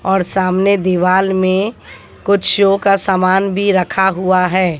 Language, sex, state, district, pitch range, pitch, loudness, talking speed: Hindi, female, Haryana, Jhajjar, 185-195 Hz, 190 Hz, -14 LUFS, 150 wpm